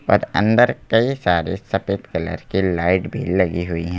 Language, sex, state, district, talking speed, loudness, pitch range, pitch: Hindi, male, Madhya Pradesh, Bhopal, 180 wpm, -19 LUFS, 90-105 Hz, 95 Hz